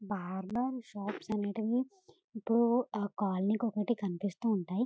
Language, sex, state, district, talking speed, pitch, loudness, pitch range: Telugu, female, Telangana, Karimnagar, 125 wpm, 215 Hz, -34 LUFS, 200-240 Hz